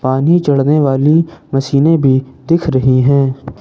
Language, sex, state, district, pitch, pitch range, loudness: Hindi, male, Jharkhand, Ranchi, 140 Hz, 135-160 Hz, -12 LUFS